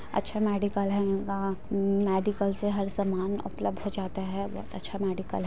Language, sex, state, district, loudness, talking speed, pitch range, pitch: Hindi, female, Bihar, Muzaffarpur, -30 LUFS, 210 wpm, 195-200 Hz, 200 Hz